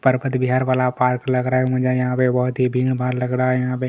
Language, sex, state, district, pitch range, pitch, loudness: Hindi, male, Chhattisgarh, Kabirdham, 125-130 Hz, 125 Hz, -19 LUFS